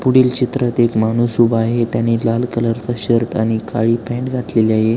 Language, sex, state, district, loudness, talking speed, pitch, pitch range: Marathi, male, Maharashtra, Aurangabad, -16 LUFS, 180 wpm, 115 Hz, 115-120 Hz